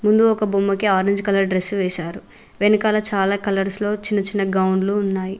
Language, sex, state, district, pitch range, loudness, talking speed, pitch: Telugu, female, Telangana, Mahabubabad, 195-210 Hz, -18 LUFS, 180 wpm, 200 Hz